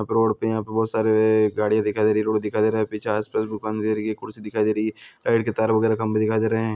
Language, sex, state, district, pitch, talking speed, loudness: Hindi, male, Bihar, Begusarai, 110 Hz, 330 wpm, -22 LUFS